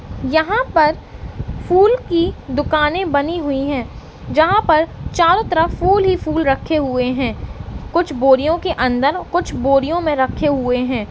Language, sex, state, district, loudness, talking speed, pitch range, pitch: Hindi, female, Uttar Pradesh, Hamirpur, -16 LUFS, 150 wpm, 275-345 Hz, 310 Hz